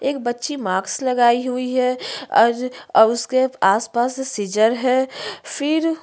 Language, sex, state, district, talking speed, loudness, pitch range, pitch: Hindi, female, Uttarakhand, Tehri Garhwal, 140 wpm, -19 LUFS, 235-265 Hz, 250 Hz